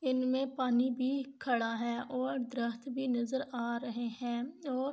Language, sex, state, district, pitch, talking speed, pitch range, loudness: Urdu, female, Andhra Pradesh, Anantapur, 255 Hz, 85 wpm, 240-265 Hz, -35 LUFS